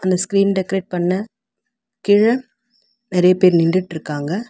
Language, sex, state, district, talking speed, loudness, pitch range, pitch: Tamil, female, Tamil Nadu, Chennai, 105 wpm, -17 LUFS, 180-225 Hz, 195 Hz